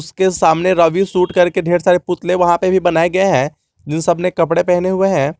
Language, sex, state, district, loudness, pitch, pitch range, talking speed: Hindi, male, Jharkhand, Garhwa, -14 LUFS, 180 Hz, 165-185 Hz, 235 wpm